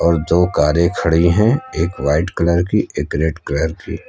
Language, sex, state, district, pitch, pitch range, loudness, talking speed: Hindi, male, Uttar Pradesh, Lucknow, 85 Hz, 80-90 Hz, -17 LUFS, 175 wpm